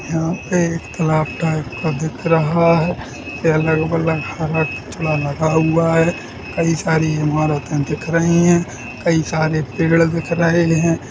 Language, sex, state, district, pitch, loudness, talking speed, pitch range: Hindi, female, Bihar, Sitamarhi, 160 Hz, -17 LUFS, 140 wpm, 155-165 Hz